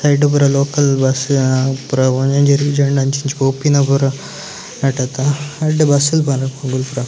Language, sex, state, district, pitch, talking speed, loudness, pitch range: Tulu, male, Karnataka, Dakshina Kannada, 140 Hz, 100 wpm, -15 LUFS, 135-145 Hz